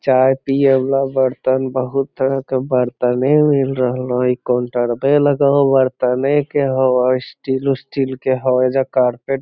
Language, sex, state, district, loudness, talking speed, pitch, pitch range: Magahi, male, Bihar, Lakhisarai, -16 LUFS, 160 wpm, 130 Hz, 130-135 Hz